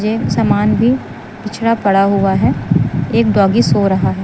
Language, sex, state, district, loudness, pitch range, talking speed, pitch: Hindi, female, Uttar Pradesh, Lucknow, -14 LUFS, 195-225 Hz, 170 wpm, 210 Hz